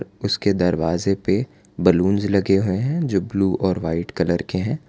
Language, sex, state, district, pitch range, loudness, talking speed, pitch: Hindi, male, Gujarat, Valsad, 90-100 Hz, -21 LUFS, 185 wpm, 95 Hz